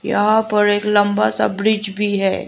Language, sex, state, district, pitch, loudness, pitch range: Hindi, female, Arunachal Pradesh, Lower Dibang Valley, 205 Hz, -17 LUFS, 200-210 Hz